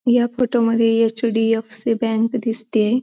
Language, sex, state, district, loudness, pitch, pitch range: Marathi, female, Maharashtra, Pune, -19 LUFS, 230 Hz, 225-240 Hz